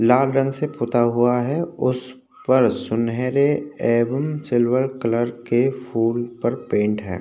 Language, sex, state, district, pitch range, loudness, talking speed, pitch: Hindi, male, Maharashtra, Chandrapur, 120-135 Hz, -21 LUFS, 125 wpm, 125 Hz